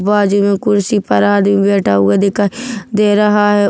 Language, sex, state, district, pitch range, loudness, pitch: Hindi, female, Chhattisgarh, Bilaspur, 200-210 Hz, -12 LUFS, 205 Hz